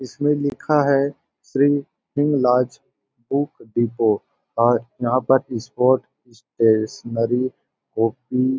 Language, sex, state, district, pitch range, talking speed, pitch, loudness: Hindi, male, Chhattisgarh, Balrampur, 120-140 Hz, 100 wpm, 130 Hz, -21 LUFS